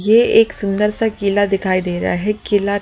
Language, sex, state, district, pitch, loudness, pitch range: Hindi, female, Delhi, New Delhi, 205 Hz, -16 LUFS, 195-220 Hz